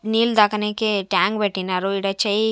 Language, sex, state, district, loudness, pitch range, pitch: Telugu, female, Andhra Pradesh, Sri Satya Sai, -20 LUFS, 195-215 Hz, 210 Hz